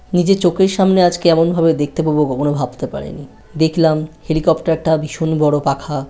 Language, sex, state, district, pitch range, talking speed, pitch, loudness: Bengali, female, West Bengal, North 24 Parganas, 150-170 Hz, 165 wpm, 160 Hz, -16 LUFS